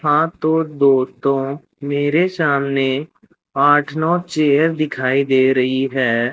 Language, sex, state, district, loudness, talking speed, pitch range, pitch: Hindi, male, Rajasthan, Bikaner, -17 LUFS, 115 wpm, 135-155 Hz, 140 Hz